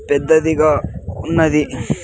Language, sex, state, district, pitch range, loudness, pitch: Telugu, male, Andhra Pradesh, Sri Satya Sai, 125-160 Hz, -15 LUFS, 150 Hz